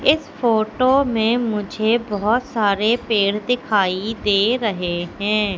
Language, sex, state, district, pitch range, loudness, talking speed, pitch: Hindi, female, Madhya Pradesh, Katni, 205-240 Hz, -19 LUFS, 120 wpm, 220 Hz